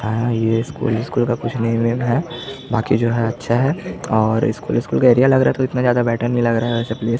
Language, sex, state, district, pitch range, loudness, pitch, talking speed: Hindi, male, Chhattisgarh, Jashpur, 115-125 Hz, -18 LUFS, 120 Hz, 250 wpm